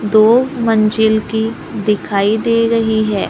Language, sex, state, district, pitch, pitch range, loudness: Hindi, female, Maharashtra, Gondia, 220 Hz, 215-230 Hz, -14 LUFS